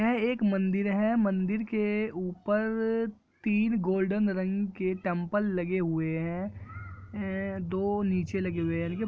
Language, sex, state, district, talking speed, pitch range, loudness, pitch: Hindi, male, Jharkhand, Jamtara, 130 wpm, 180-210 Hz, -29 LUFS, 195 Hz